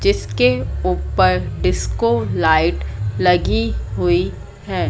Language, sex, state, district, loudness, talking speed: Hindi, female, Madhya Pradesh, Katni, -18 LUFS, 85 wpm